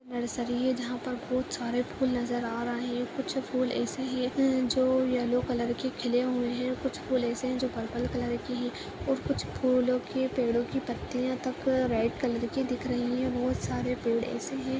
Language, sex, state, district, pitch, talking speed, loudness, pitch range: Kumaoni, female, Uttarakhand, Uttarkashi, 250 Hz, 205 wpm, -30 LUFS, 245-255 Hz